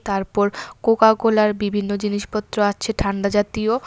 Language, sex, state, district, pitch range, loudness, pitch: Bengali, female, Tripura, West Tripura, 205-220 Hz, -20 LUFS, 205 Hz